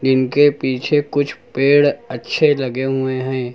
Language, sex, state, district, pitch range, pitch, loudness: Hindi, male, Uttar Pradesh, Lucknow, 130-145 Hz, 135 Hz, -17 LUFS